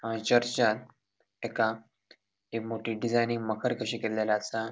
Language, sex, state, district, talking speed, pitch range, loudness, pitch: Konkani, male, Goa, North and South Goa, 100 wpm, 110-120 Hz, -30 LUFS, 115 Hz